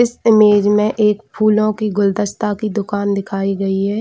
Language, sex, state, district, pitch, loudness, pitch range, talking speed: Hindi, female, Chhattisgarh, Bilaspur, 210 Hz, -16 LUFS, 200-215 Hz, 180 wpm